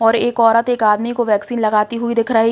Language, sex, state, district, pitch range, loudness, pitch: Hindi, female, Uttar Pradesh, Hamirpur, 220-235 Hz, -16 LUFS, 230 Hz